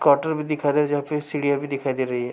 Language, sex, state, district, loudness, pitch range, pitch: Hindi, male, Maharashtra, Aurangabad, -23 LUFS, 140-150 Hz, 145 Hz